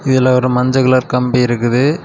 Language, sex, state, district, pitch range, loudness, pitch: Tamil, male, Tamil Nadu, Kanyakumari, 125-130 Hz, -13 LUFS, 125 Hz